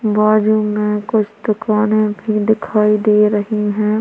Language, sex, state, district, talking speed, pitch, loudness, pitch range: Hindi, female, Chhattisgarh, Korba, 135 wpm, 210 Hz, -15 LUFS, 210-215 Hz